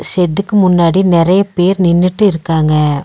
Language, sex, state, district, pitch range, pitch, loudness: Tamil, female, Tamil Nadu, Nilgiris, 165-190 Hz, 180 Hz, -11 LUFS